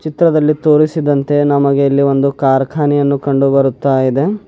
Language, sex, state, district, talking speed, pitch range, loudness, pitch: Kannada, male, Karnataka, Bidar, 120 wpm, 140-150 Hz, -13 LUFS, 140 Hz